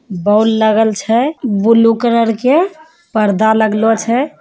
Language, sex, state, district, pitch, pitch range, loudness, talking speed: Hindi, female, Bihar, Begusarai, 225 Hz, 220-250 Hz, -13 LUFS, 125 wpm